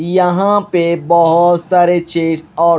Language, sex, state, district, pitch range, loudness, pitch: Hindi, male, Punjab, Kapurthala, 170-180 Hz, -12 LUFS, 170 Hz